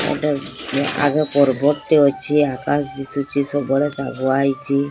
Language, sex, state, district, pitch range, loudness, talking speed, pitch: Odia, female, Odisha, Sambalpur, 140-145 Hz, -18 LUFS, 120 wpm, 140 Hz